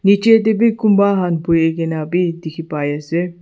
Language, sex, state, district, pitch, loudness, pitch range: Nagamese, male, Nagaland, Dimapur, 175 Hz, -16 LUFS, 165-200 Hz